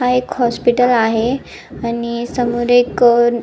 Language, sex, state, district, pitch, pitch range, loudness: Marathi, female, Maharashtra, Nagpur, 240 Hz, 235-245 Hz, -15 LUFS